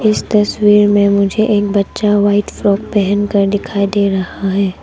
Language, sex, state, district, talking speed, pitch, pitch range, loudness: Hindi, female, Arunachal Pradesh, Longding, 175 wpm, 205 Hz, 200-205 Hz, -13 LUFS